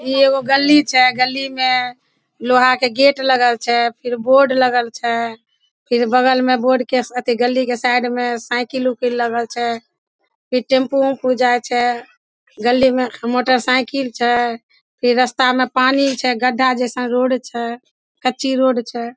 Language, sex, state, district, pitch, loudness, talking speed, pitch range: Maithili, female, Bihar, Samastipur, 250 Hz, -16 LUFS, 185 wpm, 245-260 Hz